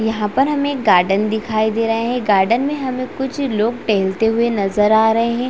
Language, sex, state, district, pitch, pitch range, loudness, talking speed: Hindi, female, Chhattisgarh, Raigarh, 225 Hz, 215-255 Hz, -17 LUFS, 220 wpm